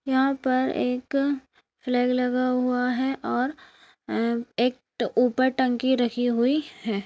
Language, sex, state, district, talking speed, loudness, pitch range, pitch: Hindi, female, Uttarakhand, Tehri Garhwal, 145 wpm, -25 LUFS, 245-260 Hz, 250 Hz